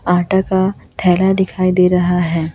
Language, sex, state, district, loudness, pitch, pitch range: Hindi, female, Chhattisgarh, Raipur, -15 LUFS, 180 Hz, 180-190 Hz